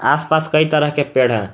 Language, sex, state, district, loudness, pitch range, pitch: Hindi, male, Jharkhand, Garhwa, -16 LUFS, 130-155 Hz, 150 Hz